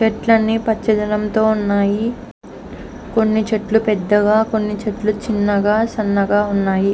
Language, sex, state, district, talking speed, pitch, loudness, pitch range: Telugu, female, Andhra Pradesh, Anantapur, 95 wpm, 215 Hz, -17 LUFS, 205-220 Hz